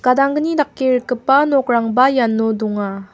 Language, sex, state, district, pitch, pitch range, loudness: Garo, female, Meghalaya, West Garo Hills, 250 Hz, 225-275 Hz, -16 LUFS